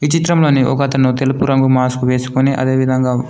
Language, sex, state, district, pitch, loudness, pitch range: Telugu, male, Telangana, Komaram Bheem, 130 Hz, -14 LUFS, 130-135 Hz